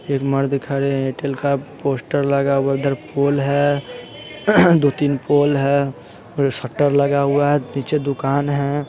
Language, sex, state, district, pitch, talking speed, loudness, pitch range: Hindi, male, Bihar, Sitamarhi, 140 Hz, 140 wpm, -18 LUFS, 135-145 Hz